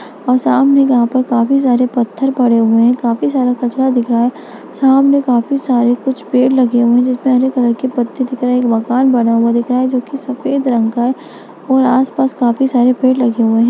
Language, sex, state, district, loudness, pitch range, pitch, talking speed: Hindi, female, Bihar, Bhagalpur, -13 LUFS, 240-265 Hz, 250 Hz, 230 wpm